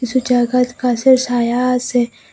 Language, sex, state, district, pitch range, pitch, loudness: Bengali, female, Assam, Hailakandi, 245-250 Hz, 250 Hz, -15 LUFS